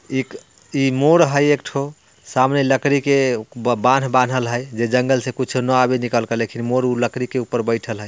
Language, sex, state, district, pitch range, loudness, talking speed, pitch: Bhojpuri, male, Bihar, Muzaffarpur, 120-135 Hz, -18 LUFS, 200 wpm, 125 Hz